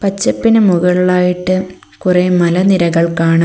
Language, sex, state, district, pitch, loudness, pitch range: Malayalam, female, Kerala, Kollam, 180 Hz, -12 LUFS, 175-185 Hz